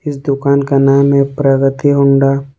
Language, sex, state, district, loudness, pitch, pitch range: Hindi, male, Jharkhand, Ranchi, -12 LUFS, 140 Hz, 135-140 Hz